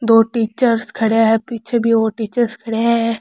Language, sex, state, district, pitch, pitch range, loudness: Rajasthani, female, Rajasthan, Churu, 230 Hz, 225-235 Hz, -17 LUFS